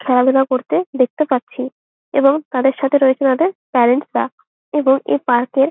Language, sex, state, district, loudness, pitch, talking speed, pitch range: Bengali, female, West Bengal, Malda, -16 LUFS, 265 Hz, 170 wpm, 255-280 Hz